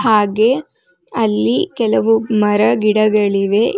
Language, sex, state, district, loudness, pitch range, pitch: Kannada, female, Karnataka, Bangalore, -15 LUFS, 205-225 Hz, 215 Hz